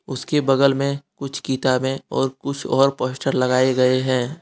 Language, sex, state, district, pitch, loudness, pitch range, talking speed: Hindi, male, Jharkhand, Deoghar, 135 Hz, -20 LUFS, 130-140 Hz, 165 wpm